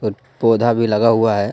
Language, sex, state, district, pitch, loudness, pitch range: Hindi, male, Jharkhand, Deoghar, 115 Hz, -16 LUFS, 110-115 Hz